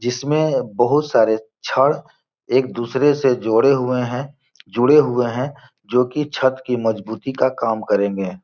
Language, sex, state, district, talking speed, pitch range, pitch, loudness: Hindi, male, Bihar, Gopalganj, 150 wpm, 115-135 Hz, 125 Hz, -19 LUFS